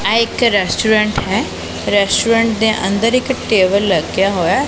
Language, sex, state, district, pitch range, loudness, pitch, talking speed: Punjabi, female, Punjab, Pathankot, 200-230 Hz, -14 LUFS, 220 Hz, 155 wpm